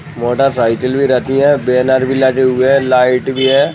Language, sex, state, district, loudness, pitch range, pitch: Hindi, male, Jharkhand, Sahebganj, -12 LUFS, 125-135 Hz, 130 Hz